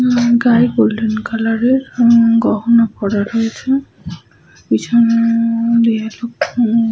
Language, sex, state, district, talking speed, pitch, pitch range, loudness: Bengali, female, Jharkhand, Sahebganj, 115 wpm, 230 Hz, 225-240 Hz, -14 LUFS